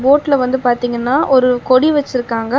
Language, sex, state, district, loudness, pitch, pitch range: Tamil, female, Tamil Nadu, Chennai, -14 LUFS, 255 Hz, 245-280 Hz